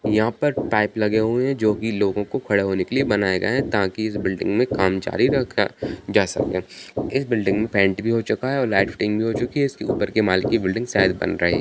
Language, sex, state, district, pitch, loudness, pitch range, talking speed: Hindi, male, Bihar, Jahanabad, 110 Hz, -21 LUFS, 100-115 Hz, 260 wpm